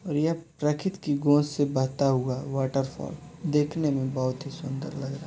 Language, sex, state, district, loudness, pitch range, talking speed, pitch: Hindi, male, Uttar Pradesh, Muzaffarnagar, -27 LUFS, 135-155 Hz, 195 wpm, 145 Hz